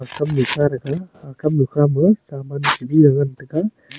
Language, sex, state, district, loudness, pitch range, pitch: Wancho, male, Arunachal Pradesh, Longding, -18 LUFS, 135-155 Hz, 145 Hz